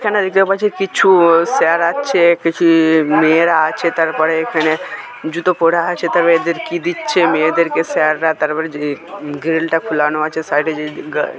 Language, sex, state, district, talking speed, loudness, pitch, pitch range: Bengali, male, West Bengal, Malda, 125 wpm, -14 LUFS, 165 Hz, 155-175 Hz